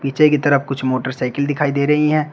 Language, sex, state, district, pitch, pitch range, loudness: Hindi, male, Uttar Pradesh, Shamli, 140 Hz, 135-150 Hz, -17 LUFS